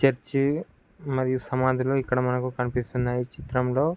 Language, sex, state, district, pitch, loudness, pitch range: Telugu, male, Andhra Pradesh, Guntur, 130 Hz, -26 LUFS, 125-135 Hz